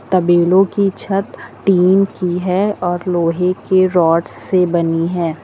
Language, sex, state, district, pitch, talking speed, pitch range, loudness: Hindi, female, Uttar Pradesh, Lucknow, 180 Hz, 155 wpm, 170-190 Hz, -15 LUFS